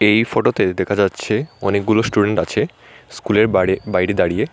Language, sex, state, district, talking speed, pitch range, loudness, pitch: Bengali, male, Tripura, Unakoti, 130 wpm, 100-110 Hz, -17 LUFS, 105 Hz